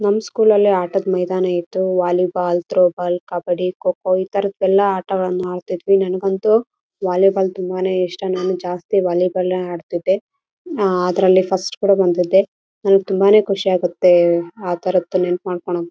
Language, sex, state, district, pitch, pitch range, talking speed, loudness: Kannada, female, Karnataka, Raichur, 185 Hz, 180-195 Hz, 35 wpm, -17 LUFS